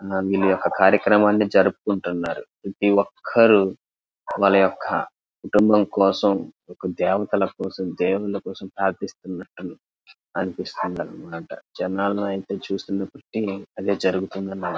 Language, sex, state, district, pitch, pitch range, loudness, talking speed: Telugu, male, Andhra Pradesh, Krishna, 100 Hz, 95-100 Hz, -22 LUFS, 95 wpm